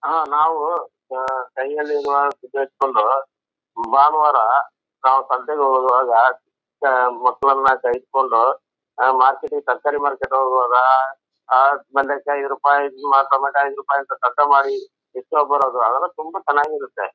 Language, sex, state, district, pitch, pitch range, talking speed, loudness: Kannada, male, Karnataka, Chamarajanagar, 140 Hz, 130-145 Hz, 80 wpm, -18 LUFS